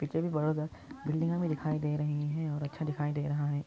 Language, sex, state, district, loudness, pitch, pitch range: Hindi, male, Andhra Pradesh, Anantapur, -33 LUFS, 150 Hz, 145-155 Hz